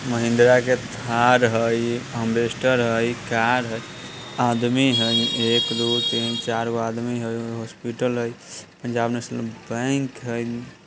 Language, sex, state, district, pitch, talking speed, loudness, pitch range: Bajjika, male, Bihar, Vaishali, 120 Hz, 135 wpm, -22 LUFS, 115-120 Hz